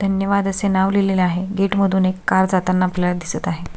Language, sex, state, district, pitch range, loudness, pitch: Marathi, female, Maharashtra, Solapur, 185-195 Hz, -18 LUFS, 190 Hz